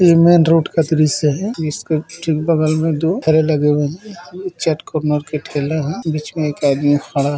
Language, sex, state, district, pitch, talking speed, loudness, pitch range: Hindi, male, Chhattisgarh, Rajnandgaon, 155 Hz, 185 wpm, -16 LUFS, 150-165 Hz